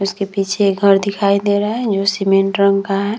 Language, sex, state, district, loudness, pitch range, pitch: Hindi, female, Bihar, Vaishali, -15 LUFS, 195-200 Hz, 200 Hz